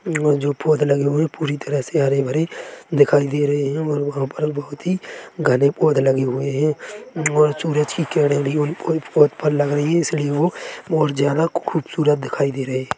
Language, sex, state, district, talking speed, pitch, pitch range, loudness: Hindi, male, Chhattisgarh, Korba, 205 wpm, 145 Hz, 140-155 Hz, -19 LUFS